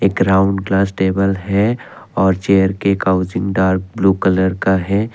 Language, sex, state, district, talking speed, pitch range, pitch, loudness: Hindi, male, Assam, Kamrup Metropolitan, 150 wpm, 95-100 Hz, 95 Hz, -16 LUFS